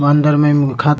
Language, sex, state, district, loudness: Maithili, male, Bihar, Supaul, -13 LUFS